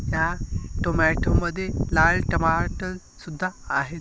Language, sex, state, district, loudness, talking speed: Marathi, male, Maharashtra, Aurangabad, -24 LUFS, 105 wpm